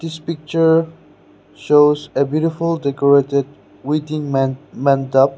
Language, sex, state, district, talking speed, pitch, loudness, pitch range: English, male, Nagaland, Dimapur, 100 wpm, 145 Hz, -17 LUFS, 140-160 Hz